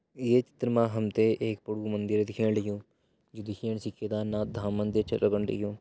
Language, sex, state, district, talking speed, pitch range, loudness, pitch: Hindi, male, Uttarakhand, Uttarkashi, 175 wpm, 105-110 Hz, -30 LUFS, 110 Hz